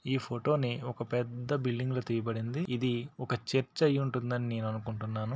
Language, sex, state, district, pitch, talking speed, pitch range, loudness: Telugu, male, Andhra Pradesh, Srikakulam, 125 Hz, 170 wpm, 115-130 Hz, -33 LUFS